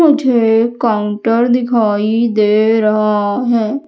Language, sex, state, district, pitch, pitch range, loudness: Hindi, female, Madhya Pradesh, Umaria, 225 Hz, 215-240 Hz, -13 LUFS